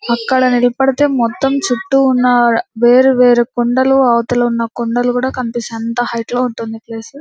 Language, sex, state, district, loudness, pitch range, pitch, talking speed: Telugu, female, Andhra Pradesh, Anantapur, -13 LUFS, 235-260 Hz, 245 Hz, 160 wpm